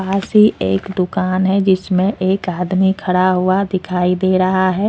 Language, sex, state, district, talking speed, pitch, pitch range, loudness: Hindi, female, Jharkhand, Ranchi, 170 wpm, 185 Hz, 185-190 Hz, -16 LUFS